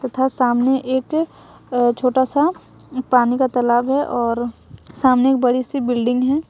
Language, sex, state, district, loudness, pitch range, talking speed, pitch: Hindi, female, Jharkhand, Ranchi, -18 LUFS, 245-265 Hz, 155 wpm, 255 Hz